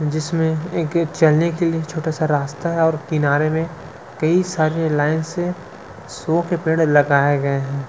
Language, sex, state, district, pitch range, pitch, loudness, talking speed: Hindi, male, Chhattisgarh, Sukma, 145-165 Hz, 160 Hz, -19 LUFS, 175 wpm